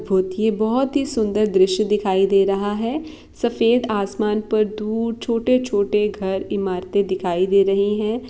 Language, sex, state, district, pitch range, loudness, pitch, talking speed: Hindi, female, Bihar, Saran, 195-230 Hz, -20 LUFS, 210 Hz, 135 wpm